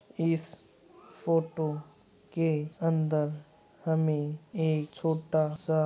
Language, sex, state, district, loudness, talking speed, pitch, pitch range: Hindi, male, Uttar Pradesh, Muzaffarnagar, -30 LUFS, 90 wpm, 160 Hz, 155-165 Hz